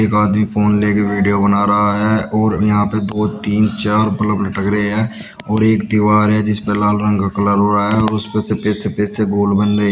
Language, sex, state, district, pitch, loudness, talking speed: Hindi, male, Uttar Pradesh, Shamli, 105 Hz, -15 LUFS, 230 wpm